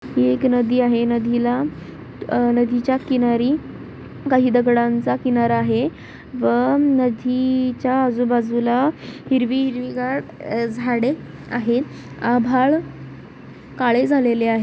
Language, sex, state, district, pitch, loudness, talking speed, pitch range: Marathi, female, Maharashtra, Nagpur, 245 Hz, -19 LUFS, 100 wpm, 235-260 Hz